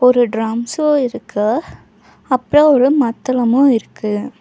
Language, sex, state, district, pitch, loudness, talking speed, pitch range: Tamil, female, Tamil Nadu, Nilgiris, 250 Hz, -15 LUFS, 95 wpm, 230-270 Hz